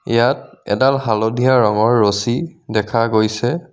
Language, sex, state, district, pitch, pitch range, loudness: Assamese, male, Assam, Kamrup Metropolitan, 115 Hz, 110-130 Hz, -17 LUFS